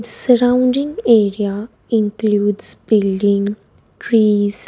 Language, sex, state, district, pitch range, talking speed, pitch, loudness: English, female, Gujarat, Valsad, 205-235 Hz, 90 wpm, 215 Hz, -16 LUFS